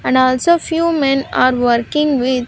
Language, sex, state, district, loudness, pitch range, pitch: English, female, Andhra Pradesh, Sri Satya Sai, -15 LUFS, 255-305 Hz, 265 Hz